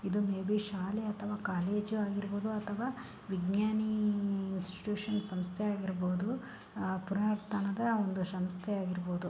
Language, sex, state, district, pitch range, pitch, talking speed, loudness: Kannada, female, Karnataka, Raichur, 190-210 Hz, 205 Hz, 90 wpm, -35 LUFS